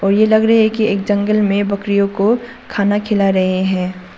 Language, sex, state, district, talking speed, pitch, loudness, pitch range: Hindi, female, Arunachal Pradesh, Papum Pare, 200 wpm, 205 Hz, -15 LUFS, 195-215 Hz